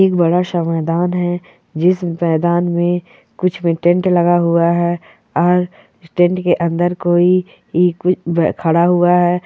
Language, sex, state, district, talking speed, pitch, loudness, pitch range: Hindi, female, Rajasthan, Churu, 140 wpm, 175 Hz, -15 LUFS, 170-180 Hz